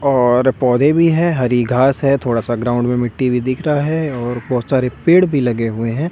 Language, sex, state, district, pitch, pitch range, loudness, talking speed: Hindi, male, Delhi, New Delhi, 130 Hz, 120-145 Hz, -16 LUFS, 235 wpm